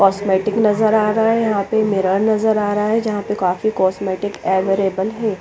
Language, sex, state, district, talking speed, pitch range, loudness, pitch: Hindi, female, Chandigarh, Chandigarh, 190 wpm, 195-220 Hz, -17 LUFS, 205 Hz